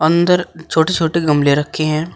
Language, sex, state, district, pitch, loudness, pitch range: Hindi, male, Uttar Pradesh, Shamli, 160 Hz, -15 LUFS, 155-170 Hz